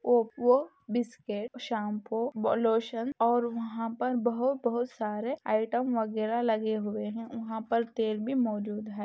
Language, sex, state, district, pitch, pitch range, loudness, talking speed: Hindi, female, Rajasthan, Nagaur, 230 Hz, 220-240 Hz, -30 LUFS, 140 wpm